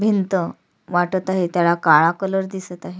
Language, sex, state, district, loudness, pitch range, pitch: Marathi, female, Maharashtra, Sindhudurg, -19 LUFS, 175-190 Hz, 185 Hz